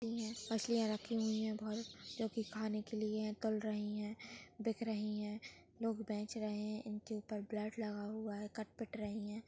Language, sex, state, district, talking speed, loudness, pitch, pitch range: Hindi, male, Maharashtra, Dhule, 175 wpm, -42 LUFS, 215 Hz, 210-225 Hz